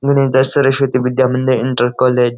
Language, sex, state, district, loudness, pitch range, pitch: Hindi, male, Uttarakhand, Uttarkashi, -14 LUFS, 125-135 Hz, 130 Hz